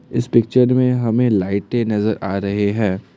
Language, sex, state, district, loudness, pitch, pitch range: Hindi, male, Assam, Kamrup Metropolitan, -18 LUFS, 110 Hz, 100-120 Hz